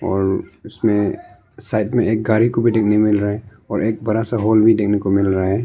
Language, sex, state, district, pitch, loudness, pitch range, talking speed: Hindi, male, Arunachal Pradesh, Longding, 110 Hz, -17 LUFS, 100-110 Hz, 245 wpm